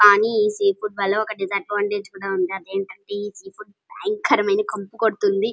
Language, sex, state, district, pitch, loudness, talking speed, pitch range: Telugu, female, Andhra Pradesh, Krishna, 205 Hz, -22 LUFS, 185 wpm, 195-215 Hz